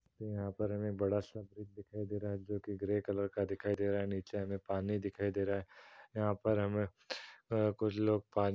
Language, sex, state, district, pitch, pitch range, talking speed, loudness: Hindi, male, Uttar Pradesh, Jyotiba Phule Nagar, 100 Hz, 100-105 Hz, 225 wpm, -37 LUFS